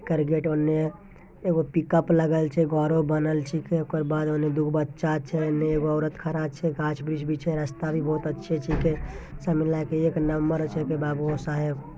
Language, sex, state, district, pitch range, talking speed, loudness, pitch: Angika, male, Bihar, Begusarai, 155-160 Hz, 190 wpm, -26 LUFS, 155 Hz